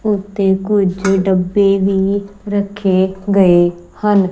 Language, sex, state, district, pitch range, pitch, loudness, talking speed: Punjabi, female, Punjab, Kapurthala, 190-200 Hz, 195 Hz, -15 LUFS, 95 wpm